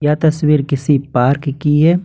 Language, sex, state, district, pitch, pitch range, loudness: Hindi, male, Jharkhand, Ranchi, 150 Hz, 140-155 Hz, -15 LUFS